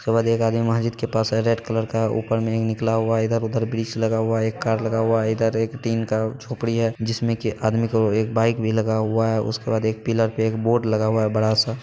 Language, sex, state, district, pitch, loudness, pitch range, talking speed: Hindi, male, Bihar, Purnia, 115 Hz, -22 LUFS, 110-115 Hz, 285 wpm